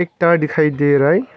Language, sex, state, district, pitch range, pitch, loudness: Hindi, male, Arunachal Pradesh, Longding, 145-170 Hz, 155 Hz, -15 LUFS